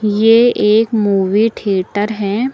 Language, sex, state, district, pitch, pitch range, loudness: Hindi, female, Uttar Pradesh, Lucknow, 210 Hz, 205-225 Hz, -13 LUFS